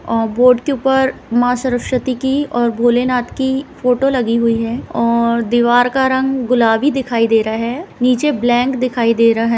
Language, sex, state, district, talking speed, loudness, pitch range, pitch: Hindi, female, Bihar, Saran, 180 wpm, -15 LUFS, 235-260 Hz, 245 Hz